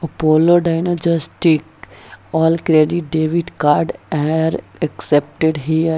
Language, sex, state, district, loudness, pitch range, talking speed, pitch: Hindi, female, Bihar, Jahanabad, -16 LUFS, 155-165 Hz, 100 wpm, 160 Hz